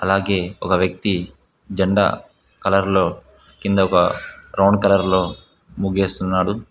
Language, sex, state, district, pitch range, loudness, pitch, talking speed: Telugu, male, Telangana, Mahabubabad, 90-100 Hz, -19 LUFS, 95 Hz, 105 wpm